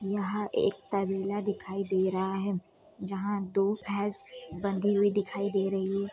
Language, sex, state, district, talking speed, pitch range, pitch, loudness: Hindi, female, Bihar, Sitamarhi, 155 wpm, 195-205 Hz, 200 Hz, -31 LUFS